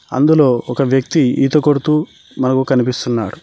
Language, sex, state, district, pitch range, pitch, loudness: Telugu, male, Telangana, Mahabubabad, 125-150 Hz, 135 Hz, -15 LUFS